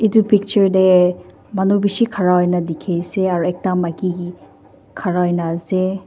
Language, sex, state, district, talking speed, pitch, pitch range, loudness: Nagamese, female, Nagaland, Dimapur, 150 wpm, 185 Hz, 180-195 Hz, -17 LUFS